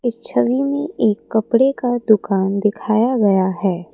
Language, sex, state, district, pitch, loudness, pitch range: Hindi, female, Assam, Kamrup Metropolitan, 220 Hz, -17 LUFS, 195-245 Hz